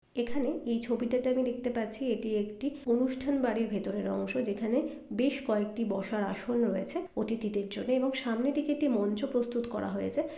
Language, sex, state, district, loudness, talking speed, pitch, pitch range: Bengali, female, West Bengal, Jalpaiguri, -32 LUFS, 160 wpm, 240 Hz, 215-265 Hz